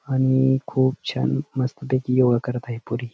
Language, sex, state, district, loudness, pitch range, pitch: Marathi, male, Maharashtra, Dhule, -22 LUFS, 125-130 Hz, 130 Hz